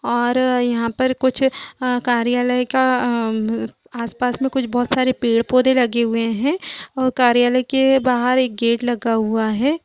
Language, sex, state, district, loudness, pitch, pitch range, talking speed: Hindi, female, Chhattisgarh, Kabirdham, -18 LUFS, 250 Hz, 235-260 Hz, 165 wpm